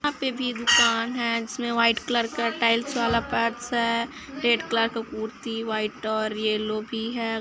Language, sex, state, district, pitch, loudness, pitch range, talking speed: Hindi, female, Chhattisgarh, Kabirdham, 230 Hz, -25 LUFS, 225-240 Hz, 185 wpm